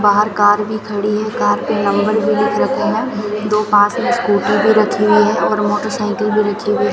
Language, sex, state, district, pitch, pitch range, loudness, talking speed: Hindi, female, Rajasthan, Bikaner, 210 Hz, 205-215 Hz, -15 LUFS, 225 wpm